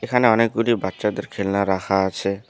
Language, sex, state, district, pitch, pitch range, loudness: Bengali, male, West Bengal, Alipurduar, 100 Hz, 100-115 Hz, -21 LUFS